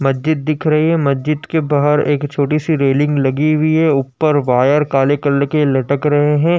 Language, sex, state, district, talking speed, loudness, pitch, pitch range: Hindi, male, Uttar Pradesh, Jyotiba Phule Nagar, 200 wpm, -15 LUFS, 145 Hz, 140-155 Hz